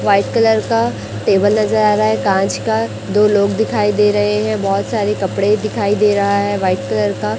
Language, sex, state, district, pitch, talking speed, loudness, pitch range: Hindi, female, Chhattisgarh, Raipur, 205 Hz, 220 wpm, -15 LUFS, 195-215 Hz